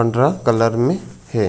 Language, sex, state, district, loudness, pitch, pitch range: Chhattisgarhi, male, Chhattisgarh, Raigarh, -18 LUFS, 120 Hz, 115-140 Hz